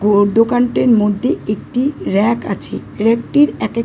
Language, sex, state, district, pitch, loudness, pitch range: Bengali, female, West Bengal, Dakshin Dinajpur, 230 Hz, -15 LUFS, 210-245 Hz